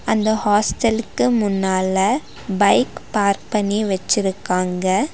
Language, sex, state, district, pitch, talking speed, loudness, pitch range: Tamil, female, Tamil Nadu, Nilgiris, 205 Hz, 80 wpm, -19 LUFS, 190-220 Hz